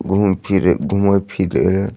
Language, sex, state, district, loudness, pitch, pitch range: Maithili, male, Bihar, Madhepura, -17 LUFS, 100 Hz, 95-100 Hz